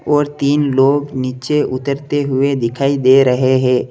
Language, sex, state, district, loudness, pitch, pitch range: Hindi, male, Uttar Pradesh, Lalitpur, -15 LUFS, 135 Hz, 130-145 Hz